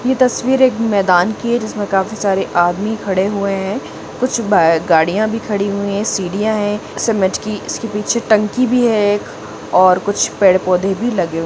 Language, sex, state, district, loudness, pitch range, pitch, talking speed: Hindi, female, Jharkhand, Jamtara, -15 LUFS, 190-225 Hz, 205 Hz, 195 wpm